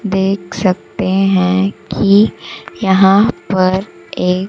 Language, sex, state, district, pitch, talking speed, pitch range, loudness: Hindi, female, Bihar, Kaimur, 190 Hz, 95 wpm, 185-195 Hz, -14 LUFS